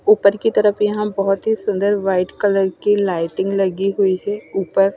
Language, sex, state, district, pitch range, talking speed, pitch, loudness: Hindi, female, Chandigarh, Chandigarh, 195-210 Hz, 195 wpm, 200 Hz, -18 LUFS